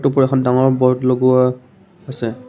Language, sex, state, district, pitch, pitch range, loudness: Assamese, male, Assam, Kamrup Metropolitan, 130 Hz, 125-130 Hz, -15 LUFS